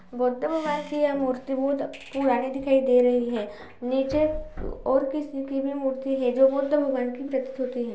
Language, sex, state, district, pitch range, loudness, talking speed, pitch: Hindi, female, Uttar Pradesh, Budaun, 255-280 Hz, -25 LUFS, 190 wpm, 270 Hz